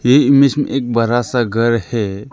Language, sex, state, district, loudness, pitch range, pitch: Hindi, male, Arunachal Pradesh, Lower Dibang Valley, -15 LUFS, 115-135 Hz, 120 Hz